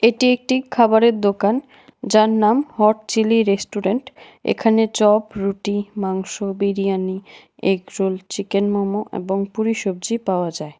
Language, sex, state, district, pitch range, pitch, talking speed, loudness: Bengali, female, Tripura, West Tripura, 195-225 Hz, 210 Hz, 120 wpm, -19 LUFS